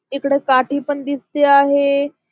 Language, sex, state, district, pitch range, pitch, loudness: Marathi, female, Maharashtra, Dhule, 275-285 Hz, 280 Hz, -16 LUFS